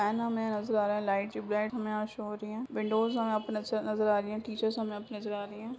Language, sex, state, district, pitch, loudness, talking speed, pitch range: Hindi, female, Bihar, Bhagalpur, 215 Hz, -33 LUFS, 300 wpm, 210-225 Hz